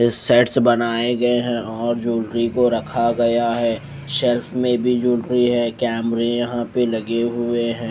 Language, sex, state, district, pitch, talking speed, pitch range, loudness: Hindi, male, Maharashtra, Mumbai Suburban, 120 Hz, 165 wpm, 115-120 Hz, -19 LUFS